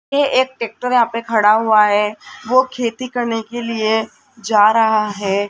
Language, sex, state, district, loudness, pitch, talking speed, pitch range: Hindi, female, Rajasthan, Jaipur, -16 LUFS, 225 Hz, 175 wpm, 215-250 Hz